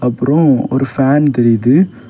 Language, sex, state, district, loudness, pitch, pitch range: Tamil, male, Tamil Nadu, Kanyakumari, -12 LUFS, 125 Hz, 120-135 Hz